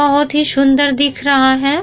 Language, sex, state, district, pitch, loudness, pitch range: Hindi, female, Bihar, Vaishali, 285 Hz, -12 LUFS, 275-290 Hz